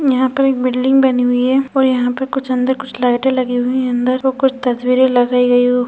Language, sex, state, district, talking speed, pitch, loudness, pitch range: Hindi, female, Rajasthan, Churu, 195 wpm, 255 Hz, -15 LUFS, 245-265 Hz